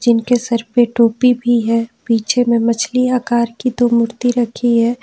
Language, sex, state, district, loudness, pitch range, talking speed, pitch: Hindi, female, Jharkhand, Ranchi, -15 LUFS, 230-245 Hz, 180 wpm, 235 Hz